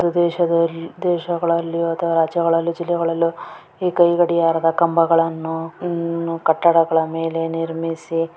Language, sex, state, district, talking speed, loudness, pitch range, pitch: Kannada, female, Karnataka, Bellary, 85 wpm, -19 LUFS, 165-170 Hz, 165 Hz